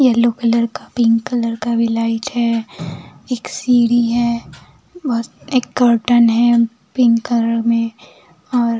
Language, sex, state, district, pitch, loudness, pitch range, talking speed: Hindi, female, Bihar, Katihar, 235 Hz, -16 LUFS, 230-240 Hz, 135 wpm